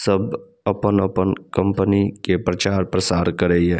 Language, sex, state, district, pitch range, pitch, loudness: Maithili, male, Bihar, Saharsa, 90-100 Hz, 95 Hz, -20 LUFS